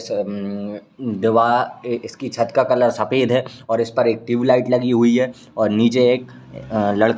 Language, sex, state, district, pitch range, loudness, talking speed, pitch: Hindi, male, Uttar Pradesh, Ghazipur, 110-125 Hz, -19 LUFS, 175 wpm, 120 Hz